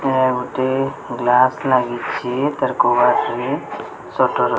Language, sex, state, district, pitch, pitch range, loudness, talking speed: Odia, female, Odisha, Sambalpur, 130 Hz, 125-135 Hz, -18 LUFS, 120 wpm